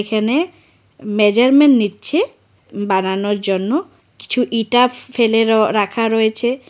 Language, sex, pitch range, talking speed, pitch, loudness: Bengali, female, 210-250 Hz, 100 wpm, 225 Hz, -16 LUFS